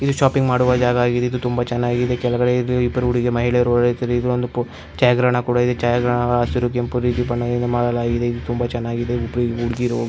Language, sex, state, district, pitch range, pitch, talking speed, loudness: Kannada, male, Karnataka, Chamarajanagar, 120-125 Hz, 120 Hz, 145 wpm, -19 LUFS